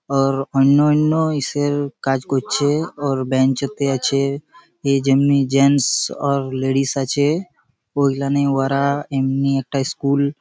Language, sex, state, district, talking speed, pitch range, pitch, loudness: Bengali, male, West Bengal, Malda, 120 wpm, 135-145 Hz, 140 Hz, -18 LUFS